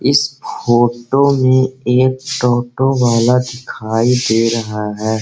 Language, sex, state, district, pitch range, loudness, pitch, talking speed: Hindi, male, Bihar, Gaya, 115-130 Hz, -15 LUFS, 125 Hz, 115 wpm